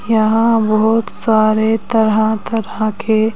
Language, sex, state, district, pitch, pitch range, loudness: Hindi, female, Madhya Pradesh, Bhopal, 220 Hz, 215-225 Hz, -15 LUFS